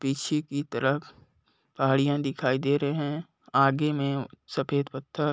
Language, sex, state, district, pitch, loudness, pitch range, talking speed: Hindi, male, Chhattisgarh, Balrampur, 140 Hz, -27 LUFS, 135-145 Hz, 145 wpm